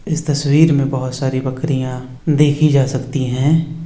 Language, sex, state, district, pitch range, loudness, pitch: Hindi, male, Uttar Pradesh, Etah, 130-150 Hz, -16 LUFS, 140 Hz